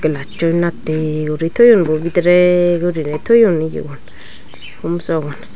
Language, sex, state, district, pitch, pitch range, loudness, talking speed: Chakma, female, Tripura, Dhalai, 165 Hz, 150-175 Hz, -15 LUFS, 110 wpm